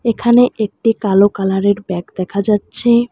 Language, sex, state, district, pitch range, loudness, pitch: Bengali, female, West Bengal, Alipurduar, 195-235 Hz, -15 LUFS, 205 Hz